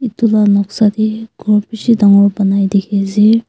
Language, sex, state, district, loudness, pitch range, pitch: Nagamese, female, Nagaland, Kohima, -12 LUFS, 200-225 Hz, 210 Hz